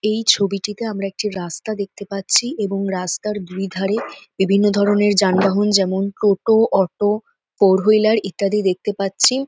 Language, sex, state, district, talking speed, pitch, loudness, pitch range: Bengali, female, West Bengal, North 24 Parganas, 140 wpm, 200 Hz, -18 LUFS, 195-210 Hz